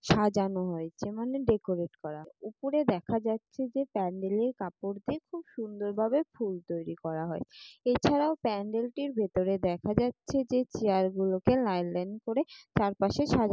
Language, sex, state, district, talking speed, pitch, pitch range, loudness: Bengali, female, West Bengal, Jalpaiguri, 140 wpm, 210 Hz, 190-250 Hz, -31 LUFS